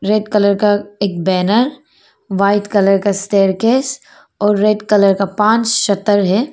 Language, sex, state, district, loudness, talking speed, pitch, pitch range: Hindi, female, Arunachal Pradesh, Papum Pare, -14 LUFS, 145 wpm, 205 Hz, 200-215 Hz